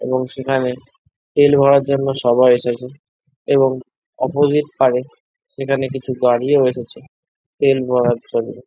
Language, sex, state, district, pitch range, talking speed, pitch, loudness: Bengali, male, West Bengal, Jalpaiguri, 125-140 Hz, 120 wpm, 135 Hz, -17 LUFS